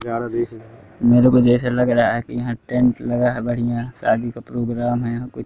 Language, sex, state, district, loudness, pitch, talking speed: Hindi, male, Madhya Pradesh, Katni, -19 LUFS, 120 Hz, 210 wpm